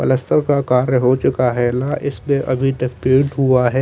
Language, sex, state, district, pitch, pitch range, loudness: Hindi, male, Chandigarh, Chandigarh, 130 Hz, 125-135 Hz, -17 LUFS